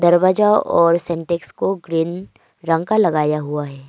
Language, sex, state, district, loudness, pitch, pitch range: Hindi, female, Arunachal Pradesh, Longding, -18 LUFS, 170 Hz, 165-180 Hz